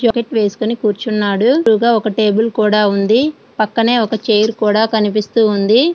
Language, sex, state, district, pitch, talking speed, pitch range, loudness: Telugu, female, Andhra Pradesh, Srikakulam, 220 Hz, 120 wpm, 210-230 Hz, -14 LUFS